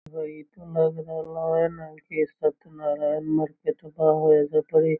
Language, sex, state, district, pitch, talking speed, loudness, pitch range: Magahi, male, Bihar, Lakhisarai, 155 Hz, 155 wpm, -25 LUFS, 155-160 Hz